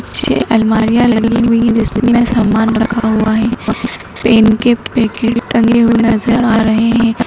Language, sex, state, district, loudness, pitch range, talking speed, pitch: Hindi, male, Madhya Pradesh, Dhar, -12 LUFS, 220-235 Hz, 140 wpm, 230 Hz